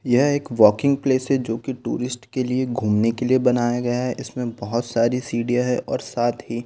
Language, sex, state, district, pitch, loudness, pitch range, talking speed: Hindi, male, Delhi, New Delhi, 125 Hz, -21 LUFS, 120-130 Hz, 215 wpm